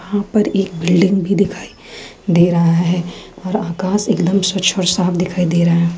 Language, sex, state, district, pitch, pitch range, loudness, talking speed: Hindi, female, Jharkhand, Ranchi, 185 Hz, 175-195 Hz, -16 LUFS, 190 wpm